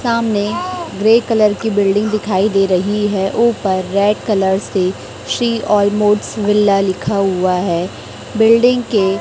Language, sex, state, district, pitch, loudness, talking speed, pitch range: Hindi, female, Chhattisgarh, Raipur, 205 Hz, -15 LUFS, 145 wpm, 195-220 Hz